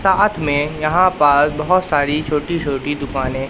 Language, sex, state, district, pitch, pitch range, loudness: Hindi, male, Madhya Pradesh, Katni, 150 Hz, 145-170 Hz, -17 LUFS